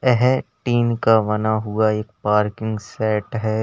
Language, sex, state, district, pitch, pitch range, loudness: Hindi, male, Uttar Pradesh, Lalitpur, 110 Hz, 105-115 Hz, -20 LUFS